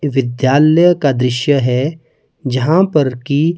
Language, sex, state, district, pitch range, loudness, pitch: Hindi, male, Himachal Pradesh, Shimla, 130-160 Hz, -14 LUFS, 145 Hz